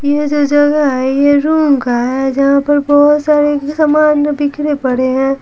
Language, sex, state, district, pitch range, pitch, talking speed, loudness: Hindi, female, Bihar, Patna, 275-295 Hz, 290 Hz, 175 wpm, -12 LUFS